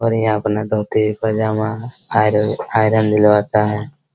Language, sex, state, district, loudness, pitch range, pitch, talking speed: Hindi, male, Bihar, Araria, -17 LUFS, 105-110 Hz, 110 Hz, 130 wpm